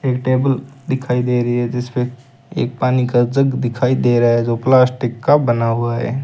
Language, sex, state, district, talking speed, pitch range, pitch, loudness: Hindi, male, Rajasthan, Bikaner, 200 wpm, 120-130 Hz, 125 Hz, -17 LUFS